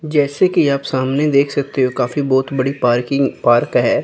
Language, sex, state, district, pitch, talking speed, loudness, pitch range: Hindi, female, Chandigarh, Chandigarh, 140 Hz, 195 wpm, -16 LUFS, 130-140 Hz